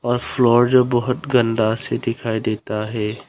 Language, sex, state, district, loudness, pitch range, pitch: Hindi, male, Arunachal Pradesh, Longding, -19 LUFS, 110-125 Hz, 120 Hz